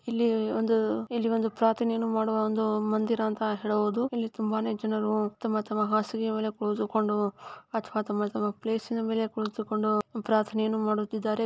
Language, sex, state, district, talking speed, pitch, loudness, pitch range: Kannada, female, Karnataka, Chamarajanagar, 110 wpm, 220 Hz, -29 LUFS, 215-225 Hz